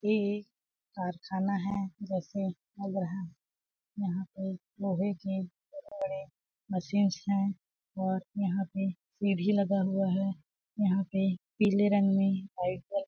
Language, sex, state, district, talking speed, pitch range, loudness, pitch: Hindi, female, Chhattisgarh, Balrampur, 140 wpm, 185-200 Hz, -32 LUFS, 195 Hz